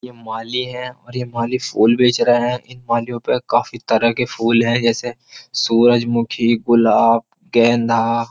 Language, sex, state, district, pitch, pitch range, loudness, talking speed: Hindi, male, Uttar Pradesh, Jyotiba Phule Nagar, 120 Hz, 115-125 Hz, -17 LUFS, 160 wpm